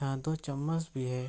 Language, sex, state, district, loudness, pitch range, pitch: Hindi, male, Bihar, Araria, -34 LUFS, 130-155 Hz, 140 Hz